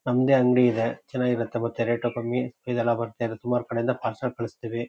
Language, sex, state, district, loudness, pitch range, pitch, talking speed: Kannada, male, Karnataka, Shimoga, -26 LUFS, 115-125 Hz, 120 Hz, 170 wpm